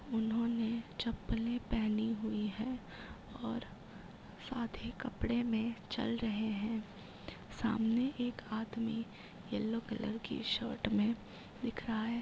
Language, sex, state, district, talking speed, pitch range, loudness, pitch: Hindi, female, Uttar Pradesh, Muzaffarnagar, 115 wpm, 220-235 Hz, -38 LUFS, 225 Hz